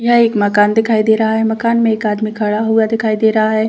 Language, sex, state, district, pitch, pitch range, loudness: Hindi, female, Chhattisgarh, Bastar, 220 Hz, 215-225 Hz, -14 LUFS